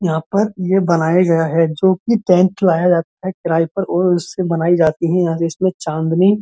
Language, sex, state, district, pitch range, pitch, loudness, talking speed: Hindi, male, Uttar Pradesh, Muzaffarnagar, 165-185 Hz, 175 Hz, -16 LUFS, 205 wpm